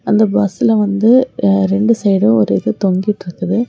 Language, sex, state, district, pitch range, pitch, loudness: Tamil, female, Tamil Nadu, Kanyakumari, 190-220 Hz, 200 Hz, -14 LUFS